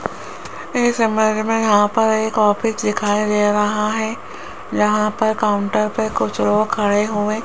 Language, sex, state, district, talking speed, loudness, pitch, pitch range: Hindi, female, Rajasthan, Jaipur, 160 wpm, -18 LUFS, 215 Hz, 210-220 Hz